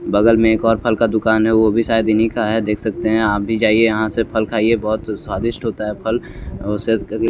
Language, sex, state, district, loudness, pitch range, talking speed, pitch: Hindi, male, Chandigarh, Chandigarh, -17 LUFS, 110-115 Hz, 280 wpm, 110 Hz